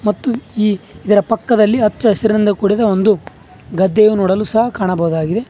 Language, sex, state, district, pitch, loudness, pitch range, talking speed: Kannada, male, Karnataka, Bangalore, 210 Hz, -14 LUFS, 190-220 Hz, 130 wpm